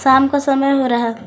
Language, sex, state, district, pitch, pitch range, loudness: Hindi, female, Jharkhand, Garhwa, 265 Hz, 240-275 Hz, -15 LUFS